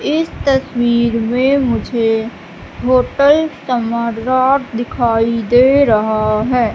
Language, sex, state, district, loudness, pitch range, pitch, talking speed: Hindi, female, Madhya Pradesh, Katni, -14 LUFS, 230-265 Hz, 240 Hz, 90 wpm